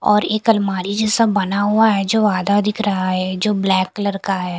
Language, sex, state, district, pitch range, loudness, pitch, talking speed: Hindi, female, Punjab, Kapurthala, 190-210 Hz, -17 LUFS, 205 Hz, 220 wpm